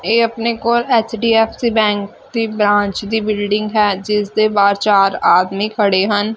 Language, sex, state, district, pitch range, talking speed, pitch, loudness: Punjabi, female, Punjab, Fazilka, 205-225 Hz, 150 wpm, 215 Hz, -15 LUFS